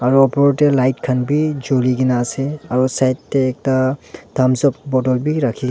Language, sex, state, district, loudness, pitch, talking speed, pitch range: Nagamese, male, Nagaland, Dimapur, -17 LUFS, 130 Hz, 180 wpm, 130-140 Hz